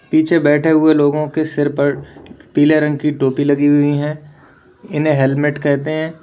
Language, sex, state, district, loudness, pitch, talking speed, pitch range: Hindi, male, Uttar Pradesh, Lalitpur, -15 LUFS, 150 Hz, 175 wpm, 145-155 Hz